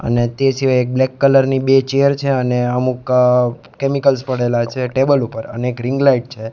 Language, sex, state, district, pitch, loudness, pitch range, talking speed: Gujarati, male, Gujarat, Gandhinagar, 130 Hz, -16 LUFS, 125-135 Hz, 195 wpm